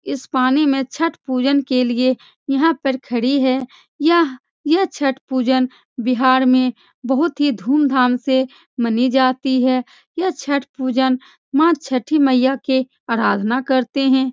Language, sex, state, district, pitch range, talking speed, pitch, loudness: Hindi, female, Bihar, Saran, 255-280 Hz, 140 wpm, 265 Hz, -18 LUFS